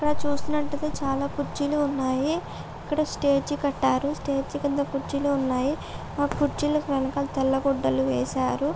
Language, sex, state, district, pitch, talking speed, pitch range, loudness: Telugu, female, Andhra Pradesh, Guntur, 285 Hz, 115 wpm, 270-290 Hz, -26 LUFS